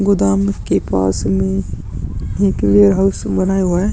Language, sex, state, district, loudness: Hindi, male, Chhattisgarh, Sukma, -16 LUFS